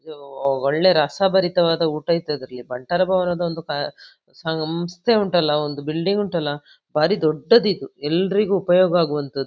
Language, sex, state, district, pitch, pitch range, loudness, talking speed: Kannada, female, Karnataka, Dakshina Kannada, 165 Hz, 145-180 Hz, -20 LUFS, 120 wpm